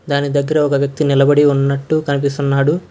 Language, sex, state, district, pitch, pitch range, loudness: Telugu, male, Karnataka, Bangalore, 140 Hz, 140-145 Hz, -15 LUFS